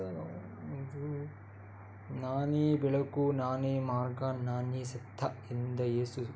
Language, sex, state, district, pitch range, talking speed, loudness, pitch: Kannada, male, Karnataka, Dakshina Kannada, 120-140 Hz, 95 wpm, -35 LUFS, 130 Hz